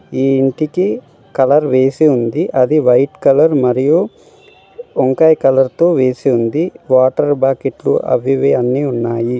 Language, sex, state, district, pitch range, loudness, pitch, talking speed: Telugu, male, Telangana, Mahabubabad, 130-155 Hz, -13 LUFS, 135 Hz, 130 wpm